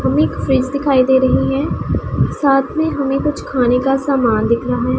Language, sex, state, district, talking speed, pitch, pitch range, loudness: Hindi, female, Punjab, Pathankot, 205 wpm, 270 Hz, 250-280 Hz, -16 LUFS